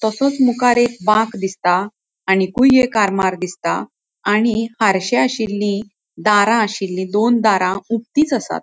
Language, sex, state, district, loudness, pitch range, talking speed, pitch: Konkani, female, Goa, North and South Goa, -17 LUFS, 195-235 Hz, 125 wpm, 215 Hz